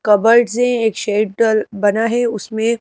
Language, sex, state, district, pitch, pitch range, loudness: Hindi, female, Madhya Pradesh, Bhopal, 225 Hz, 215-235 Hz, -16 LUFS